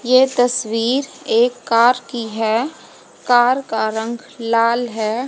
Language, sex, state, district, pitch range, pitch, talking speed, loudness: Hindi, female, Haryana, Jhajjar, 225-250 Hz, 240 Hz, 125 wpm, -17 LUFS